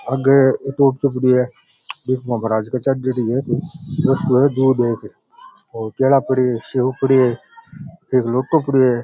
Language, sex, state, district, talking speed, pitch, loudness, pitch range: Rajasthani, male, Rajasthan, Churu, 105 wpm, 130 Hz, -17 LUFS, 125-135 Hz